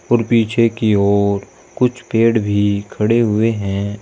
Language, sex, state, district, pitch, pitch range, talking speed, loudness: Hindi, male, Uttar Pradesh, Saharanpur, 110 Hz, 100-115 Hz, 150 wpm, -16 LUFS